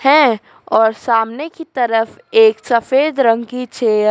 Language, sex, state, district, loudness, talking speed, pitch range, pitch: Hindi, female, Madhya Pradesh, Dhar, -15 LUFS, 160 wpm, 225-290 Hz, 245 Hz